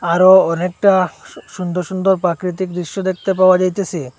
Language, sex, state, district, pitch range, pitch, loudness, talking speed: Bengali, male, Assam, Hailakandi, 180-190 Hz, 185 Hz, -15 LUFS, 130 wpm